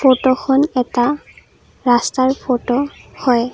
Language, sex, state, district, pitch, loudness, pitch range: Assamese, female, Assam, Kamrup Metropolitan, 255 Hz, -17 LUFS, 245-270 Hz